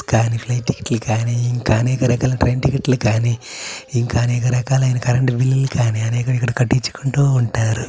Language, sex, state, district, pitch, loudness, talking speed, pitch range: Telugu, male, Andhra Pradesh, Chittoor, 125 Hz, -18 LUFS, 165 wpm, 120-130 Hz